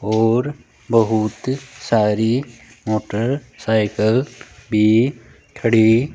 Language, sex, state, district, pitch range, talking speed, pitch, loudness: Hindi, male, Rajasthan, Jaipur, 110-125 Hz, 70 wpm, 115 Hz, -18 LUFS